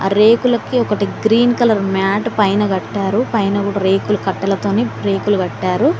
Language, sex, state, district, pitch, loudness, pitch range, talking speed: Telugu, female, Telangana, Mahabubabad, 205 Hz, -16 LUFS, 195-225 Hz, 130 wpm